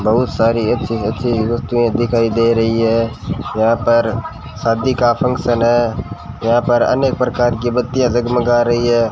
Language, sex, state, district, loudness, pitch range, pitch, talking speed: Hindi, male, Rajasthan, Bikaner, -16 LUFS, 115-120 Hz, 120 Hz, 160 wpm